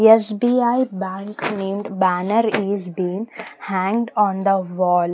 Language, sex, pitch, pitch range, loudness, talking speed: English, female, 200 Hz, 185-220 Hz, -20 LUFS, 115 wpm